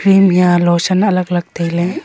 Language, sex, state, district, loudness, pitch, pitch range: Wancho, female, Arunachal Pradesh, Longding, -13 LUFS, 180 Hz, 175-190 Hz